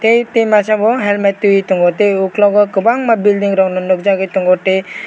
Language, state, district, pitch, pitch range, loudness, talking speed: Kokborok, Tripura, West Tripura, 200 Hz, 190-210 Hz, -13 LUFS, 165 wpm